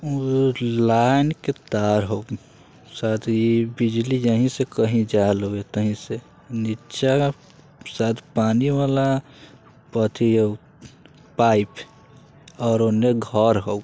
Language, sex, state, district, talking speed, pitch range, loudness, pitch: Bajjika, male, Bihar, Vaishali, 120 wpm, 110-135 Hz, -21 LUFS, 115 Hz